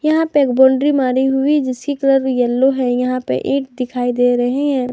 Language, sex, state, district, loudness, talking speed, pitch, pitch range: Hindi, female, Jharkhand, Garhwa, -16 LUFS, 205 wpm, 265 Hz, 250-280 Hz